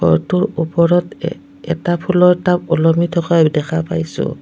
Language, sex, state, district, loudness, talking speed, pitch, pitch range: Assamese, female, Assam, Kamrup Metropolitan, -16 LUFS, 120 wpm, 170 Hz, 160-175 Hz